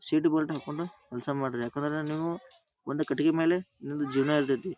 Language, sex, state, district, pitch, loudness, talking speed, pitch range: Kannada, male, Karnataka, Dharwad, 155 Hz, -30 LUFS, 165 wpm, 140-165 Hz